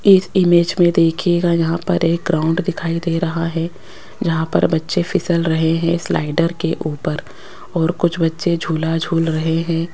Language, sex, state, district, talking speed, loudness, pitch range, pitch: Hindi, female, Rajasthan, Jaipur, 170 wpm, -18 LUFS, 165-175 Hz, 165 Hz